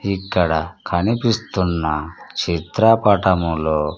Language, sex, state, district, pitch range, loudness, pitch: Telugu, male, Andhra Pradesh, Sri Satya Sai, 80-105 Hz, -19 LUFS, 90 Hz